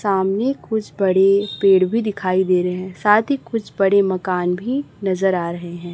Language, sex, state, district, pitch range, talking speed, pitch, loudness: Hindi, female, Chhattisgarh, Raipur, 185-210 Hz, 190 wpm, 195 Hz, -19 LUFS